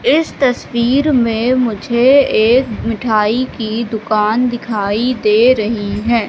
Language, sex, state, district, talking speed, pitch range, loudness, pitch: Hindi, female, Madhya Pradesh, Katni, 115 wpm, 220-250 Hz, -14 LUFS, 235 Hz